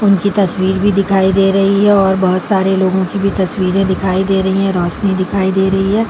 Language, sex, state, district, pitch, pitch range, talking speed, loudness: Hindi, female, Chhattisgarh, Bilaspur, 195 Hz, 190-195 Hz, 225 wpm, -13 LUFS